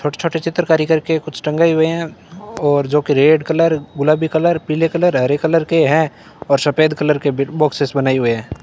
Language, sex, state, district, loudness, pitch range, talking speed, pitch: Hindi, male, Rajasthan, Bikaner, -16 LUFS, 145-165 Hz, 200 wpm, 155 Hz